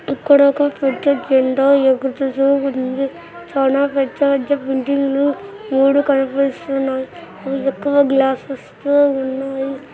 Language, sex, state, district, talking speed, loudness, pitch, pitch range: Telugu, female, Andhra Pradesh, Anantapur, 90 wpm, -17 LUFS, 275 Hz, 270-280 Hz